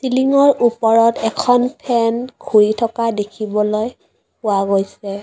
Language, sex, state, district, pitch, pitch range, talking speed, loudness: Assamese, female, Assam, Kamrup Metropolitan, 230 Hz, 210-245 Hz, 105 wpm, -16 LUFS